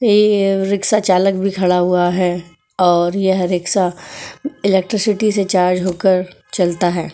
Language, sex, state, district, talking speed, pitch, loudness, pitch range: Hindi, female, Uttar Pradesh, Etah, 135 wpm, 185 Hz, -16 LUFS, 180-200 Hz